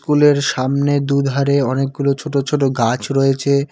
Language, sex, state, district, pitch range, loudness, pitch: Bengali, male, West Bengal, Cooch Behar, 135-140 Hz, -17 LUFS, 140 Hz